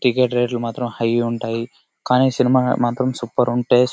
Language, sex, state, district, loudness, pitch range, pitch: Telugu, male, Karnataka, Bellary, -19 LUFS, 120-125 Hz, 120 Hz